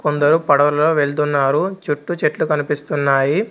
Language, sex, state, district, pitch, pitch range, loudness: Telugu, male, Telangana, Komaram Bheem, 150 Hz, 145-155 Hz, -17 LUFS